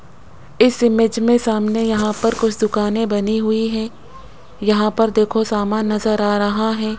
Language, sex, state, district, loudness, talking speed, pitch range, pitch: Hindi, female, Rajasthan, Jaipur, -17 LUFS, 165 wpm, 210-225 Hz, 215 Hz